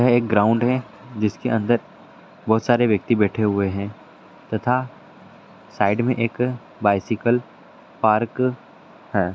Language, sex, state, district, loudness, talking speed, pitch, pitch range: Hindi, male, Bihar, Araria, -21 LUFS, 130 wpm, 115 Hz, 105-120 Hz